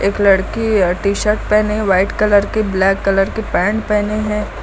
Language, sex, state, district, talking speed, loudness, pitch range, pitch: Hindi, female, Uttar Pradesh, Lucknow, 180 wpm, -15 LUFS, 195-215 Hz, 210 Hz